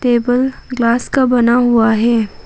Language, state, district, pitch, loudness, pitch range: Hindi, Arunachal Pradesh, Papum Pare, 240 Hz, -14 LUFS, 235-250 Hz